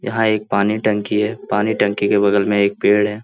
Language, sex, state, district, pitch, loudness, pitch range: Hindi, male, Bihar, Lakhisarai, 105 Hz, -17 LUFS, 100-110 Hz